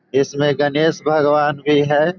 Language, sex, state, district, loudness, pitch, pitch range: Hindi, male, Bihar, Begusarai, -16 LUFS, 150 Hz, 145-155 Hz